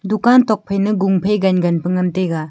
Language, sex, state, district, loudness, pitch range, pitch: Wancho, female, Arunachal Pradesh, Longding, -16 LUFS, 180-210 Hz, 190 Hz